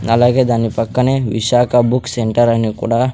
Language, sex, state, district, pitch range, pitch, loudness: Telugu, male, Andhra Pradesh, Sri Satya Sai, 115-125 Hz, 120 Hz, -15 LUFS